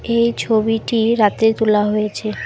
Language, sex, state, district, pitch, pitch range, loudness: Bengali, female, West Bengal, Alipurduar, 225 Hz, 215-230 Hz, -17 LUFS